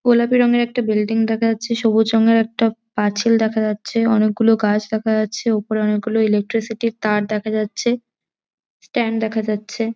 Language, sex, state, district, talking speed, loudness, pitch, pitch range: Bengali, female, West Bengal, Jhargram, 165 wpm, -18 LUFS, 225 Hz, 215-230 Hz